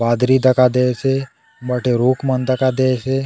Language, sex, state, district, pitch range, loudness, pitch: Halbi, male, Chhattisgarh, Bastar, 125-130 Hz, -16 LUFS, 130 Hz